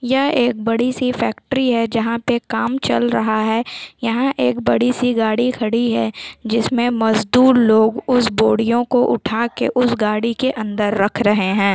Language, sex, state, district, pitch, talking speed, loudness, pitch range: Hindi, female, Chhattisgarh, Sukma, 230 Hz, 175 wpm, -17 LUFS, 220-245 Hz